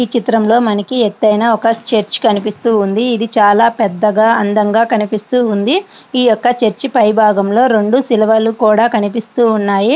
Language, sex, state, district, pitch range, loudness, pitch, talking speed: Telugu, female, Andhra Pradesh, Srikakulam, 215-235 Hz, -12 LUFS, 225 Hz, 130 wpm